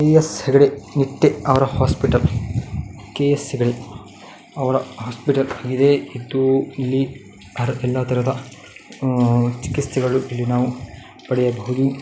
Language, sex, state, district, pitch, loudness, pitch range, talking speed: Kannada, male, Karnataka, Dakshina Kannada, 130 Hz, -20 LUFS, 125-135 Hz, 110 wpm